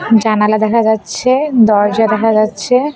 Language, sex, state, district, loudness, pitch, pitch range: Bengali, female, West Bengal, Cooch Behar, -12 LUFS, 220 Hz, 215-235 Hz